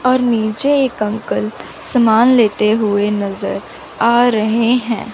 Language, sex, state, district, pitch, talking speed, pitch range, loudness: Hindi, female, Chandigarh, Chandigarh, 225 Hz, 130 wpm, 210-245 Hz, -15 LUFS